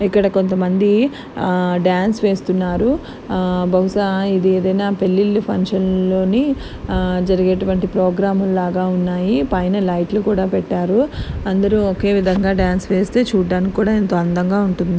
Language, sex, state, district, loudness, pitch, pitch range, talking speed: Telugu, female, Andhra Pradesh, Guntur, -17 LUFS, 190 Hz, 185-200 Hz, 120 wpm